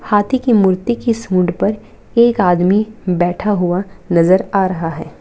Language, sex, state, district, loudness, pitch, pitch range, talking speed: Hindi, female, Bihar, Darbhanga, -15 LUFS, 195 Hz, 180-220 Hz, 160 wpm